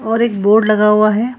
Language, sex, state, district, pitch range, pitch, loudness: Hindi, female, Bihar, Gaya, 210-225 Hz, 215 Hz, -12 LUFS